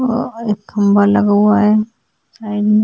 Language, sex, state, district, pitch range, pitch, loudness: Hindi, female, Chhattisgarh, Korba, 205-220 Hz, 210 Hz, -14 LUFS